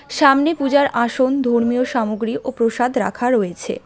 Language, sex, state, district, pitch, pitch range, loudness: Bengali, female, West Bengal, Alipurduar, 245 Hz, 235-265 Hz, -18 LUFS